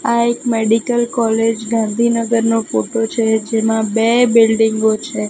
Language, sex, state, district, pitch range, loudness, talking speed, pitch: Gujarati, female, Gujarat, Gandhinagar, 220-230 Hz, -15 LUFS, 125 wpm, 225 Hz